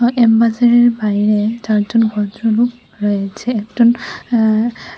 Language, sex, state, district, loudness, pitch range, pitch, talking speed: Bengali, female, Tripura, West Tripura, -15 LUFS, 210-240 Hz, 225 Hz, 95 wpm